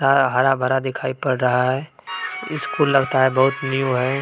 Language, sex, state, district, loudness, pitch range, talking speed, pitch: Maithili, male, Bihar, Bhagalpur, -20 LUFS, 130-140 Hz, 200 wpm, 135 Hz